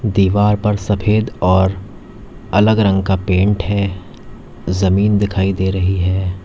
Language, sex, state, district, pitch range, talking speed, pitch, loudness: Hindi, male, Uttar Pradesh, Lalitpur, 95-105 Hz, 130 wpm, 95 Hz, -16 LUFS